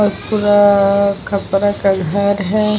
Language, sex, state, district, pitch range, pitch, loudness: Hindi, female, Bihar, Vaishali, 200-205 Hz, 200 Hz, -14 LUFS